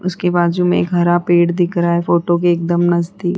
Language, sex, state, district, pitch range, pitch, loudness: Hindi, female, Uttar Pradesh, Hamirpur, 170-175 Hz, 175 Hz, -15 LUFS